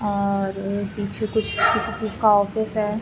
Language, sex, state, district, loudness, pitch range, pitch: Hindi, female, Chhattisgarh, Raigarh, -22 LUFS, 200-220 Hz, 210 Hz